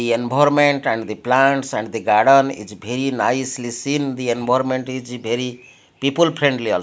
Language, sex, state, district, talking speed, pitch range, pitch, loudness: English, male, Odisha, Malkangiri, 175 wpm, 120-135 Hz, 130 Hz, -19 LUFS